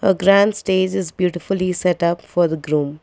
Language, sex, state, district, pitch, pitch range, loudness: English, female, Karnataka, Bangalore, 180 Hz, 170-190 Hz, -18 LUFS